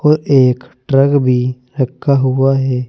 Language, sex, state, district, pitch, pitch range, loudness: Hindi, male, Uttar Pradesh, Saharanpur, 135 Hz, 125-140 Hz, -13 LUFS